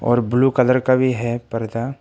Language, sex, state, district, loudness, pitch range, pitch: Hindi, male, Arunachal Pradesh, Papum Pare, -18 LUFS, 120-130 Hz, 125 Hz